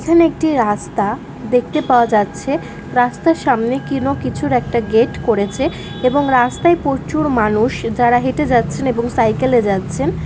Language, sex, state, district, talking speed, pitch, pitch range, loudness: Bengali, female, West Bengal, Kolkata, 140 wpm, 245 Hz, 225-275 Hz, -16 LUFS